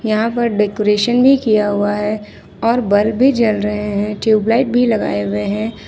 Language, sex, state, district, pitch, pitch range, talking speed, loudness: Hindi, female, Jharkhand, Ranchi, 215 Hz, 210-235 Hz, 185 wpm, -15 LUFS